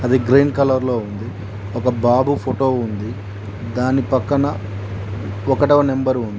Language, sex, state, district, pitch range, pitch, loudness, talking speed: Telugu, male, Telangana, Mahabubabad, 105-135 Hz, 120 Hz, -18 LUFS, 130 wpm